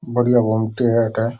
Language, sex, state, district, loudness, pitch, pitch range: Rajasthani, male, Rajasthan, Churu, -18 LUFS, 115 Hz, 110-120 Hz